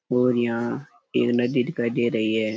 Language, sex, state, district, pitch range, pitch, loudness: Rajasthani, male, Rajasthan, Churu, 115-125 Hz, 120 Hz, -23 LUFS